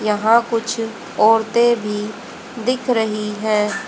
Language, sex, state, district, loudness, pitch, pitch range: Hindi, female, Haryana, Rohtak, -18 LUFS, 225 Hz, 210-235 Hz